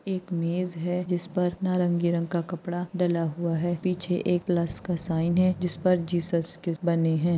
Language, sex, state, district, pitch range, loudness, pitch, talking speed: Hindi, female, Maharashtra, Aurangabad, 170-180 Hz, -27 LUFS, 175 Hz, 185 wpm